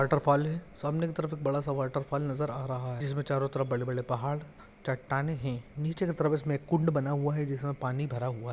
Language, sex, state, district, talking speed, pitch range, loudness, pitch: Hindi, male, Maharashtra, Pune, 240 wpm, 135-150 Hz, -31 LUFS, 140 Hz